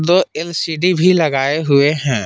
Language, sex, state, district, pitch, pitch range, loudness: Hindi, male, Jharkhand, Palamu, 160 Hz, 140-170 Hz, -15 LUFS